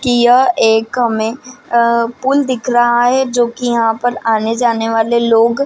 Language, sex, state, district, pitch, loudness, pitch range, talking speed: Hindi, female, Bihar, Madhepura, 240 Hz, -13 LUFS, 230-250 Hz, 180 wpm